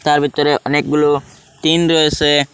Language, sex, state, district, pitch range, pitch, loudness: Bengali, male, Assam, Hailakandi, 145-150 Hz, 145 Hz, -15 LUFS